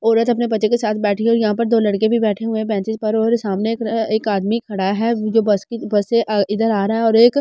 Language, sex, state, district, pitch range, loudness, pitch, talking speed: Hindi, female, Delhi, New Delhi, 210-230 Hz, -18 LUFS, 220 Hz, 305 wpm